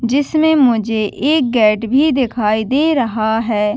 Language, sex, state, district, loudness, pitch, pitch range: Hindi, female, Chhattisgarh, Bastar, -15 LUFS, 235 Hz, 220-285 Hz